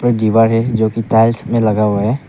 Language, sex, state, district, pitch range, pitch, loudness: Hindi, male, Arunachal Pradesh, Papum Pare, 110-115 Hz, 115 Hz, -14 LUFS